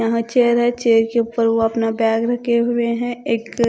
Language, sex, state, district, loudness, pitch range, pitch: Hindi, female, Punjab, Kapurthala, -18 LUFS, 225-240 Hz, 235 Hz